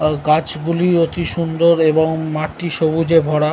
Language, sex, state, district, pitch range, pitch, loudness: Bengali, male, West Bengal, North 24 Parganas, 155-170 Hz, 160 Hz, -16 LUFS